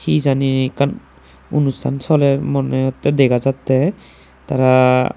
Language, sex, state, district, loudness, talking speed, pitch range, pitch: Chakma, male, Tripura, Dhalai, -16 LUFS, 95 wpm, 130-140 Hz, 135 Hz